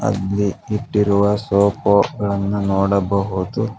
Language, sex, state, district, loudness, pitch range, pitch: Kannada, male, Karnataka, Bangalore, -18 LUFS, 100-105 Hz, 100 Hz